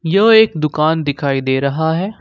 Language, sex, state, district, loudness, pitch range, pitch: Hindi, male, Jharkhand, Ranchi, -14 LUFS, 140-185 Hz, 155 Hz